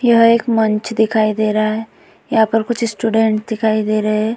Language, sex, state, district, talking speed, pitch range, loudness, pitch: Hindi, female, Uttar Pradesh, Budaun, 205 wpm, 215-230 Hz, -16 LUFS, 220 Hz